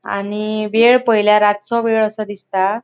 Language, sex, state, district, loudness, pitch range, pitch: Konkani, female, Goa, North and South Goa, -15 LUFS, 205-225 Hz, 215 Hz